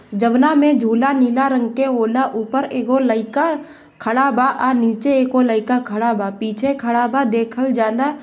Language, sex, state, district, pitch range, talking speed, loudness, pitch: Bhojpuri, female, Bihar, Gopalganj, 230-275 Hz, 160 wpm, -17 LUFS, 255 Hz